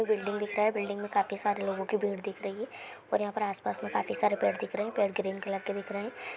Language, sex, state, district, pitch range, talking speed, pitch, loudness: Maithili, female, Bihar, Samastipur, 200-210 Hz, 290 wpm, 205 Hz, -32 LUFS